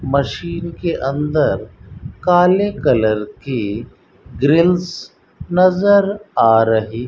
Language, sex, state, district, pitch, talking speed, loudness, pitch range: Hindi, male, Rajasthan, Bikaner, 150 Hz, 95 wpm, -16 LUFS, 115-180 Hz